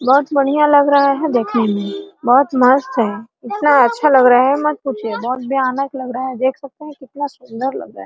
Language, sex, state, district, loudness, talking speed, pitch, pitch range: Hindi, female, Bihar, Araria, -15 LUFS, 230 wpm, 260 Hz, 245-280 Hz